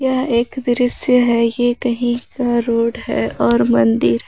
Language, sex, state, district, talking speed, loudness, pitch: Hindi, female, Jharkhand, Garhwa, 155 wpm, -16 LUFS, 240 Hz